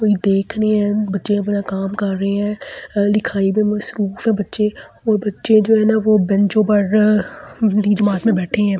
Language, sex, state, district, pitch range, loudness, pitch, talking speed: Hindi, female, Delhi, New Delhi, 200-215 Hz, -17 LUFS, 210 Hz, 185 wpm